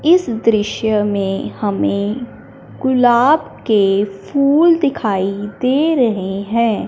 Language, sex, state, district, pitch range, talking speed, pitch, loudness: Hindi, male, Punjab, Fazilka, 200-260 Hz, 95 wpm, 225 Hz, -16 LUFS